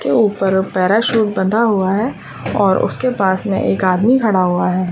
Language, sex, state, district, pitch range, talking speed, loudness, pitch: Hindi, female, Chhattisgarh, Raigarh, 185-220 Hz, 170 wpm, -15 LUFS, 195 Hz